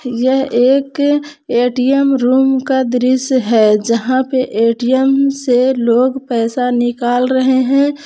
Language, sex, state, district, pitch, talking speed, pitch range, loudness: Hindi, female, Jharkhand, Palamu, 255 Hz, 120 wpm, 245-270 Hz, -13 LUFS